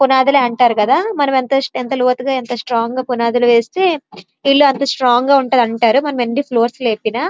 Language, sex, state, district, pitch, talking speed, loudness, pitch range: Telugu, female, Andhra Pradesh, Srikakulam, 255 Hz, 170 wpm, -14 LUFS, 240-275 Hz